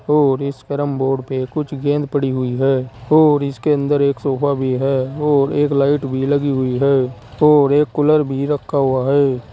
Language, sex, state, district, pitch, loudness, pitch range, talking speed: Hindi, male, Uttar Pradesh, Saharanpur, 140 Hz, -17 LUFS, 130-145 Hz, 190 wpm